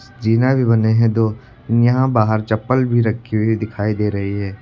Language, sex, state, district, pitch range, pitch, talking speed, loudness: Hindi, male, Uttar Pradesh, Lucknow, 110-120 Hz, 110 Hz, 195 wpm, -17 LUFS